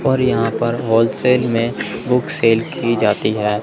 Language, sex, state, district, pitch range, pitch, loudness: Hindi, male, Chandigarh, Chandigarh, 110-125 Hz, 115 Hz, -17 LUFS